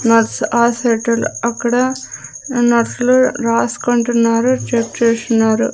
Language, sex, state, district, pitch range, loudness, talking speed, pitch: Telugu, female, Andhra Pradesh, Sri Satya Sai, 230-245 Hz, -15 LUFS, 75 wpm, 235 Hz